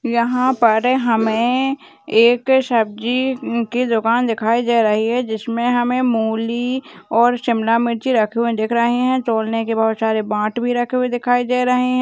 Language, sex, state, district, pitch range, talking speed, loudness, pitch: Hindi, female, Rajasthan, Churu, 225-250 Hz, 170 wpm, -17 LUFS, 235 Hz